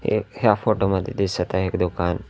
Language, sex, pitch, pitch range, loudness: Marathi, male, 95 Hz, 90-105 Hz, -22 LUFS